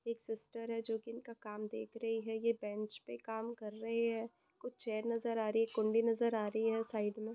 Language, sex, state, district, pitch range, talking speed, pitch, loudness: Hindi, female, Bihar, Jamui, 220-230 Hz, 235 wpm, 225 Hz, -39 LUFS